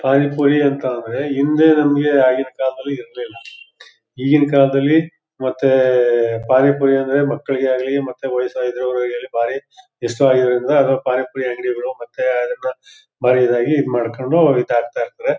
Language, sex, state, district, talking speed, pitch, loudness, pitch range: Kannada, male, Karnataka, Mysore, 130 wpm, 135 Hz, -17 LUFS, 125-145 Hz